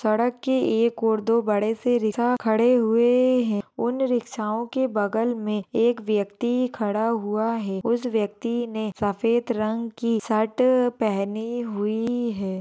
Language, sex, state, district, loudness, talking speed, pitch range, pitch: Hindi, female, Maharashtra, Sindhudurg, -23 LUFS, 145 wpm, 215-240 Hz, 230 Hz